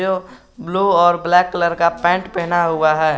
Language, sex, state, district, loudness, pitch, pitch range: Hindi, male, Jharkhand, Garhwa, -16 LUFS, 175 Hz, 170-180 Hz